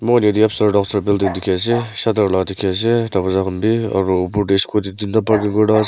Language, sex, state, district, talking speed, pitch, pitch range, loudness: Nagamese, male, Nagaland, Kohima, 225 wpm, 105 Hz, 95-110 Hz, -17 LUFS